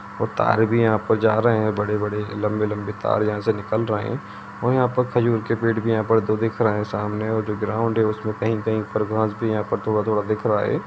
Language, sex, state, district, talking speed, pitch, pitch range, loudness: Hindi, male, Jharkhand, Jamtara, 255 wpm, 110 Hz, 105-115 Hz, -22 LUFS